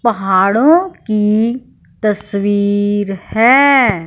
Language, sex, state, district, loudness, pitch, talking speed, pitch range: Hindi, female, Punjab, Fazilka, -13 LUFS, 210 Hz, 60 wpm, 200-240 Hz